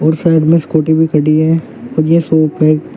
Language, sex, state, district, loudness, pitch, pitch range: Hindi, male, Uttar Pradesh, Shamli, -12 LUFS, 160 Hz, 155-165 Hz